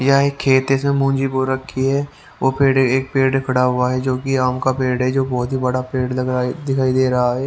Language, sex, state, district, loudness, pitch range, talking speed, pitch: Hindi, male, Haryana, Rohtak, -18 LUFS, 125-135 Hz, 275 wpm, 130 Hz